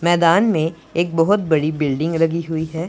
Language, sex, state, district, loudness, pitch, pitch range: Hindi, male, Punjab, Pathankot, -18 LUFS, 165 Hz, 160-170 Hz